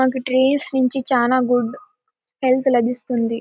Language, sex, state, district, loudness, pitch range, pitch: Telugu, female, Karnataka, Bellary, -18 LUFS, 245-265 Hz, 255 Hz